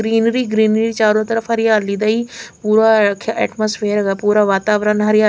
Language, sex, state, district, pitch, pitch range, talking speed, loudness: Hindi, female, Chandigarh, Chandigarh, 215 Hz, 210-225 Hz, 170 wpm, -15 LUFS